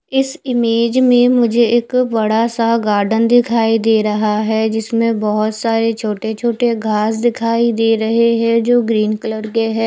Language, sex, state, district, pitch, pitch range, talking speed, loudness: Hindi, female, Odisha, Khordha, 230 Hz, 220-235 Hz, 165 wpm, -15 LUFS